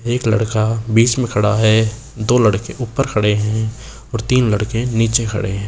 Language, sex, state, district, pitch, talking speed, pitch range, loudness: Hindi, male, Rajasthan, Jaipur, 110 Hz, 180 wpm, 110-120 Hz, -17 LUFS